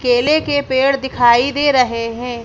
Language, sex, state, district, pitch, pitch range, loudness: Hindi, female, Madhya Pradesh, Bhopal, 255 Hz, 240-280 Hz, -15 LUFS